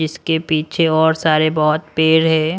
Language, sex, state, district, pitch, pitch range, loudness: Hindi, male, Punjab, Pathankot, 160 Hz, 155-160 Hz, -16 LUFS